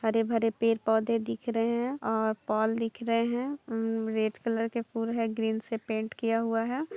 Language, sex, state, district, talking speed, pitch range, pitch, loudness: Hindi, female, Jharkhand, Jamtara, 205 wpm, 220-230 Hz, 225 Hz, -30 LUFS